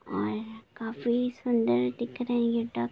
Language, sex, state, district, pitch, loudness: Hindi, female, Jharkhand, Jamtara, 230 Hz, -29 LUFS